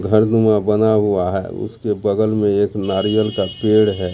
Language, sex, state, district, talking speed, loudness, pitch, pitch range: Hindi, male, Bihar, Katihar, 190 wpm, -17 LUFS, 105 Hz, 100-110 Hz